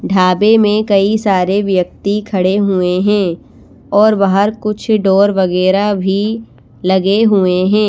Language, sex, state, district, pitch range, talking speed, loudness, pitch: Hindi, female, Madhya Pradesh, Bhopal, 185-210 Hz, 130 wpm, -13 LUFS, 200 Hz